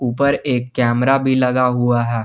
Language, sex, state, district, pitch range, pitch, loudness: Hindi, male, Jharkhand, Garhwa, 120-130 Hz, 125 Hz, -17 LUFS